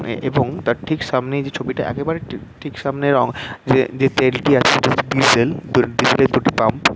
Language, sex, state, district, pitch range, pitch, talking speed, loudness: Bengali, male, West Bengal, Dakshin Dinajpur, 130-140 Hz, 135 Hz, 180 wpm, -17 LUFS